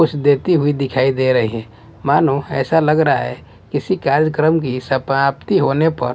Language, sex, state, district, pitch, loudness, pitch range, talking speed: Hindi, male, Bihar, West Champaran, 140 Hz, -16 LUFS, 130-155 Hz, 175 wpm